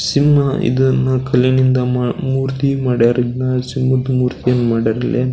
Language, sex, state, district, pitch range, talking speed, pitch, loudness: Kannada, male, Karnataka, Belgaum, 125-130 Hz, 125 wpm, 130 Hz, -16 LUFS